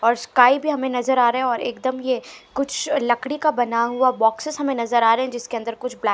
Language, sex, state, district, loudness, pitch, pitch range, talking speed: Hindi, female, Haryana, Charkhi Dadri, -20 LUFS, 250 Hz, 235-265 Hz, 265 wpm